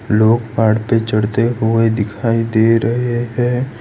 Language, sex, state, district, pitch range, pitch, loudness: Hindi, male, Gujarat, Valsad, 110-120 Hz, 115 Hz, -15 LUFS